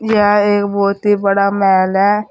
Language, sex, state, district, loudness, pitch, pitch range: Hindi, female, Uttar Pradesh, Saharanpur, -13 LUFS, 200 Hz, 200-205 Hz